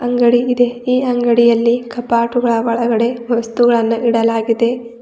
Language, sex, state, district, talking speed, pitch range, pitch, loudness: Kannada, female, Karnataka, Bidar, 95 wpm, 235-245 Hz, 235 Hz, -15 LUFS